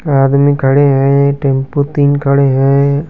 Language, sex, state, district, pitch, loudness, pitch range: Hindi, male, Bihar, Kaimur, 140 Hz, -11 LUFS, 135-145 Hz